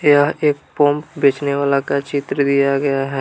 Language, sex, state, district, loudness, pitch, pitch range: Hindi, male, Jharkhand, Palamu, -17 LUFS, 140 Hz, 140-145 Hz